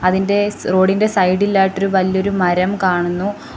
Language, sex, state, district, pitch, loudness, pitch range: Malayalam, female, Kerala, Kollam, 190 Hz, -16 LUFS, 185-200 Hz